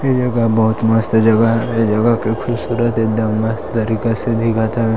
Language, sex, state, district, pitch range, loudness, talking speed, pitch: Chhattisgarhi, male, Chhattisgarh, Sarguja, 110-115 Hz, -16 LUFS, 195 wpm, 115 Hz